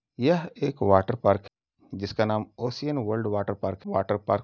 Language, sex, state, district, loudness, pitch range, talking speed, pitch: Hindi, male, Uttar Pradesh, Jalaun, -27 LUFS, 100-120 Hz, 190 wpm, 105 Hz